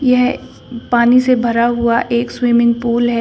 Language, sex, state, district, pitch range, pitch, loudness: Hindi, female, Uttar Pradesh, Shamli, 235-250 Hz, 240 Hz, -14 LUFS